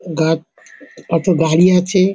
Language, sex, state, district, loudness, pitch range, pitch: Bengali, female, West Bengal, North 24 Parganas, -15 LUFS, 160-185 Hz, 170 Hz